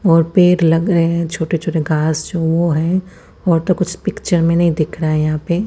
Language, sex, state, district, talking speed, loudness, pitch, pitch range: Hindi, female, Punjab, Fazilka, 245 wpm, -16 LUFS, 165 Hz, 160-175 Hz